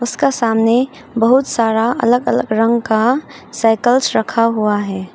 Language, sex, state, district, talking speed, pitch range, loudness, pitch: Hindi, female, Arunachal Pradesh, Longding, 140 wpm, 225-250 Hz, -15 LUFS, 230 Hz